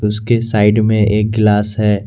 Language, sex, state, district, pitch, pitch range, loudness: Hindi, male, Jharkhand, Garhwa, 105 Hz, 105-110 Hz, -13 LUFS